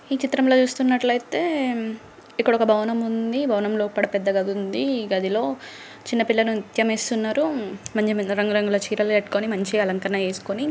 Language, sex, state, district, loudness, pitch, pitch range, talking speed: Telugu, female, Andhra Pradesh, Srikakulam, -22 LUFS, 220 Hz, 205-245 Hz, 150 wpm